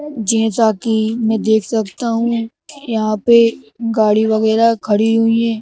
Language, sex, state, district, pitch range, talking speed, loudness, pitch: Hindi, male, Madhya Pradesh, Bhopal, 220-230 Hz, 140 wpm, -15 LUFS, 225 Hz